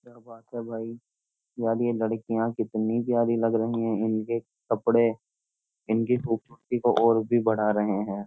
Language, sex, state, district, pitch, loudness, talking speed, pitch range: Hindi, male, Uttar Pradesh, Jyotiba Phule Nagar, 115 Hz, -26 LUFS, 160 wpm, 110-115 Hz